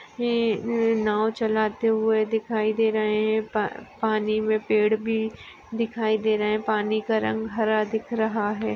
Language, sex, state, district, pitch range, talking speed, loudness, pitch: Hindi, female, Maharashtra, Aurangabad, 215-225 Hz, 170 wpm, -24 LUFS, 220 Hz